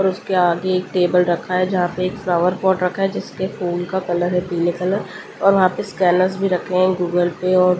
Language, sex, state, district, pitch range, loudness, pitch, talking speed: Hindi, female, Delhi, New Delhi, 175-190 Hz, -19 LUFS, 185 Hz, 245 wpm